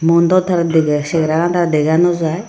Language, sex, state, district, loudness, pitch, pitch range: Chakma, female, Tripura, Unakoti, -14 LUFS, 165 Hz, 160-175 Hz